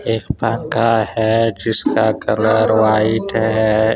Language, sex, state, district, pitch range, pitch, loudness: Hindi, male, Jharkhand, Deoghar, 110-115 Hz, 110 Hz, -16 LUFS